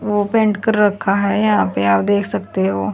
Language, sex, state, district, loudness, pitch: Hindi, female, Haryana, Charkhi Dadri, -16 LUFS, 195 Hz